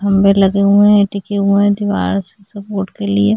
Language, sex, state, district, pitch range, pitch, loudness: Hindi, female, Chhattisgarh, Sukma, 195-205 Hz, 200 Hz, -14 LUFS